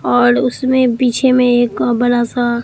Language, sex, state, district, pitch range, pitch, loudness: Hindi, female, Bihar, Katihar, 240-250 Hz, 245 Hz, -13 LUFS